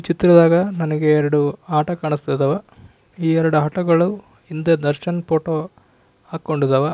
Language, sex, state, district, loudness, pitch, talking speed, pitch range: Kannada, male, Karnataka, Raichur, -18 LUFS, 160 Hz, 140 wpm, 150-170 Hz